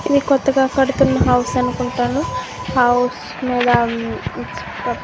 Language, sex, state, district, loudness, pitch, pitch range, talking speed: Telugu, female, Andhra Pradesh, Visakhapatnam, -18 LUFS, 250 Hz, 245-275 Hz, 70 wpm